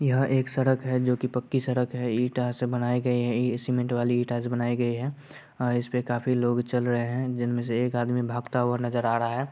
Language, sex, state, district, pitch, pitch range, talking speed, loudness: Hindi, male, Bihar, Saharsa, 125 Hz, 120-125 Hz, 245 wpm, -27 LUFS